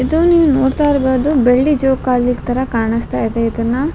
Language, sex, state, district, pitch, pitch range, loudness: Kannada, female, Karnataka, Raichur, 260 Hz, 245-290 Hz, -14 LUFS